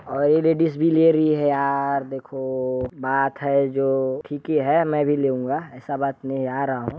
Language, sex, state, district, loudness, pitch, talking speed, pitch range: Hindi, male, Chhattisgarh, Balrampur, -22 LUFS, 140 Hz, 205 wpm, 135-150 Hz